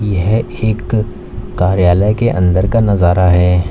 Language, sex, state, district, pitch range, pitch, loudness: Hindi, male, Uttar Pradesh, Lalitpur, 90-110 Hz, 95 Hz, -13 LUFS